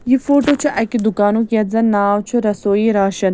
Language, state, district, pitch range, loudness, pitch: Kashmiri, Punjab, Kapurthala, 205-240 Hz, -15 LUFS, 220 Hz